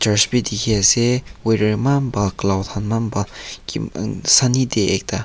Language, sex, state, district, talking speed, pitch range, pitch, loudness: Nagamese, male, Nagaland, Kohima, 180 wpm, 100-120 Hz, 110 Hz, -18 LUFS